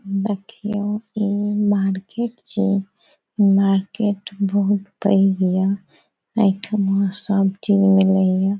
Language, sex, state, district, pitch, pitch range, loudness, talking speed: Maithili, female, Bihar, Saharsa, 200 Hz, 195-205 Hz, -20 LUFS, 100 wpm